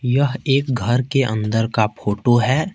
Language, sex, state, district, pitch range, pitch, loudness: Hindi, male, Jharkhand, Ranchi, 115-135 Hz, 125 Hz, -19 LUFS